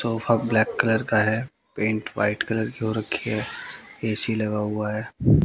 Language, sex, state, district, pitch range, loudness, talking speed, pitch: Hindi, male, Bihar, West Champaran, 105-115 Hz, -24 LUFS, 175 wpm, 110 Hz